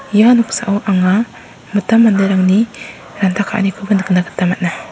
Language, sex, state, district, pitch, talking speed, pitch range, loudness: Garo, female, Meghalaya, West Garo Hills, 200 Hz, 120 wpm, 190-225 Hz, -14 LUFS